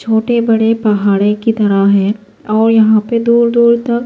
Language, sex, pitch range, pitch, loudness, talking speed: Urdu, female, 210-235 Hz, 225 Hz, -12 LUFS, 175 wpm